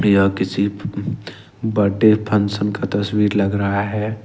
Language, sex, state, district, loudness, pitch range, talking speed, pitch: Hindi, male, Jharkhand, Ranchi, -19 LUFS, 100-105 Hz, 125 wpm, 105 Hz